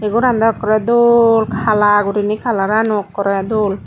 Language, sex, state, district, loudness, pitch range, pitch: Chakma, female, Tripura, Dhalai, -14 LUFS, 205-225 Hz, 215 Hz